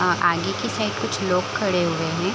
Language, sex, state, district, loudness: Hindi, female, Bihar, Sitamarhi, -22 LUFS